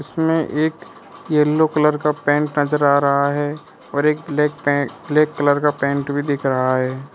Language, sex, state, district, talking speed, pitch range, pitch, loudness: Hindi, male, Arunachal Pradesh, Lower Dibang Valley, 185 wpm, 140-150 Hz, 145 Hz, -18 LUFS